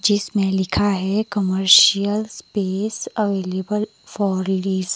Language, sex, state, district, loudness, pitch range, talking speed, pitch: Hindi, female, Himachal Pradesh, Shimla, -19 LUFS, 190-210 Hz, 110 wpm, 200 Hz